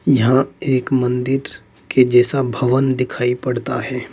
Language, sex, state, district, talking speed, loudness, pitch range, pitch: Hindi, male, Uttar Pradesh, Saharanpur, 130 wpm, -17 LUFS, 125-135 Hz, 125 Hz